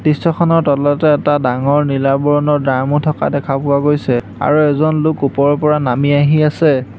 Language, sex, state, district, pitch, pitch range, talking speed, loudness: Assamese, male, Assam, Hailakandi, 145 Hz, 140-150 Hz, 165 wpm, -14 LUFS